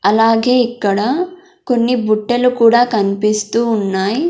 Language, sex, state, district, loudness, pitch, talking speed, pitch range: Telugu, female, Andhra Pradesh, Sri Satya Sai, -14 LUFS, 230 Hz, 95 wpm, 210-250 Hz